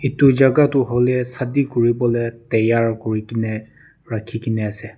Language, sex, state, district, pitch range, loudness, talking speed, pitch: Nagamese, male, Nagaland, Dimapur, 115-135 Hz, -19 LUFS, 170 wpm, 120 Hz